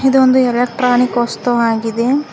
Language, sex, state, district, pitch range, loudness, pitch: Kannada, female, Karnataka, Koppal, 240-260 Hz, -14 LUFS, 245 Hz